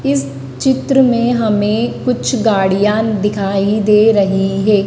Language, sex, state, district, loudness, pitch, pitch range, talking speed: Hindi, female, Madhya Pradesh, Dhar, -14 LUFS, 210 Hz, 195-225 Hz, 125 wpm